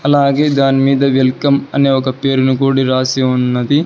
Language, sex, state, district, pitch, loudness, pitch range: Telugu, male, Telangana, Hyderabad, 135 Hz, -13 LUFS, 130-140 Hz